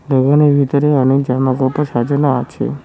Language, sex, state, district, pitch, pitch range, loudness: Bengali, male, West Bengal, Cooch Behar, 140 Hz, 130-145 Hz, -14 LUFS